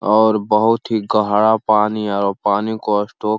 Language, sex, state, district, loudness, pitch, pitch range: Hindi, male, Uttar Pradesh, Hamirpur, -17 LUFS, 105 Hz, 105-110 Hz